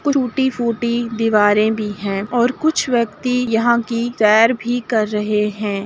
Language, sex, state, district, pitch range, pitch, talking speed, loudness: Hindi, female, Uttar Pradesh, Jalaun, 210-245 Hz, 230 Hz, 155 wpm, -17 LUFS